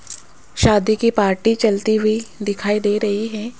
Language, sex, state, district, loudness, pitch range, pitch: Hindi, female, Rajasthan, Jaipur, -18 LUFS, 205-220 Hz, 215 Hz